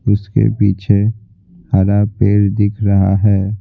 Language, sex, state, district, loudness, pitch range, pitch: Hindi, male, Bihar, Patna, -14 LUFS, 100-105 Hz, 105 Hz